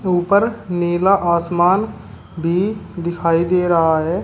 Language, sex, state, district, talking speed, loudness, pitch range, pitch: Hindi, male, Uttar Pradesh, Shamli, 115 wpm, -17 LUFS, 170-190 Hz, 175 Hz